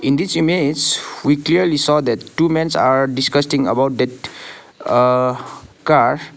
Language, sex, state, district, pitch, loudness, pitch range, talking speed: English, male, Sikkim, Gangtok, 145 Hz, -16 LUFS, 130-160 Hz, 140 wpm